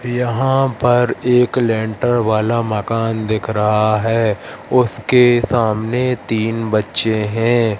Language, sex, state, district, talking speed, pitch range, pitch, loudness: Hindi, male, Madhya Pradesh, Katni, 115 wpm, 110-120 Hz, 115 Hz, -16 LUFS